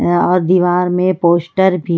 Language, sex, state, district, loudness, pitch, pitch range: Hindi, female, Jharkhand, Ranchi, -14 LUFS, 180 Hz, 175-185 Hz